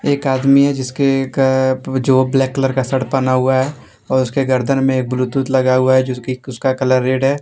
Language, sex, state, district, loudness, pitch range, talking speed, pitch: Hindi, male, Jharkhand, Deoghar, -16 LUFS, 130-135 Hz, 210 wpm, 130 Hz